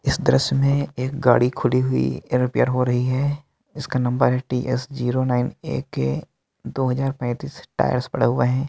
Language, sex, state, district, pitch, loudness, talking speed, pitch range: Hindi, male, Bihar, Katihar, 125 Hz, -22 LUFS, 170 wpm, 125-135 Hz